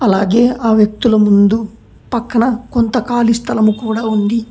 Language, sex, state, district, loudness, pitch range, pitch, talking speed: Telugu, male, Telangana, Hyderabad, -13 LUFS, 215-235 Hz, 225 Hz, 135 wpm